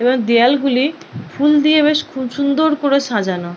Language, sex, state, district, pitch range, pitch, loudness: Bengali, female, West Bengal, Purulia, 245-295 Hz, 280 Hz, -15 LUFS